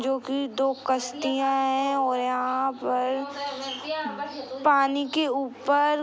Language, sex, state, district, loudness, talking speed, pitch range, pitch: Hindi, female, Bihar, East Champaran, -26 LUFS, 120 wpm, 265-285 Hz, 270 Hz